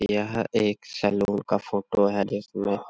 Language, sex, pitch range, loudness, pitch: Hindi, male, 100-105 Hz, -26 LUFS, 100 Hz